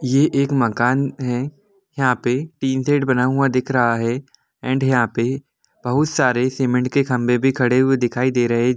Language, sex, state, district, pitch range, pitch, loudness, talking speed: Hindi, male, Jharkhand, Jamtara, 125-140 Hz, 130 Hz, -19 LUFS, 180 wpm